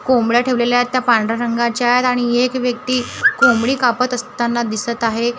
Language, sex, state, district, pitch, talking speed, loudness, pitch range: Marathi, female, Maharashtra, Gondia, 245 Hz, 165 wpm, -16 LUFS, 235-250 Hz